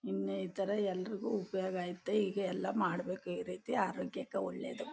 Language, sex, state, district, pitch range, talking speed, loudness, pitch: Kannada, female, Karnataka, Chamarajanagar, 175-200 Hz, 160 wpm, -37 LUFS, 185 Hz